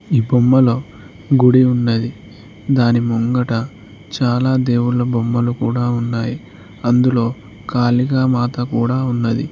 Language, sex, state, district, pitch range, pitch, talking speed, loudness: Telugu, male, Telangana, Mahabubabad, 115-125 Hz, 120 Hz, 100 wpm, -16 LUFS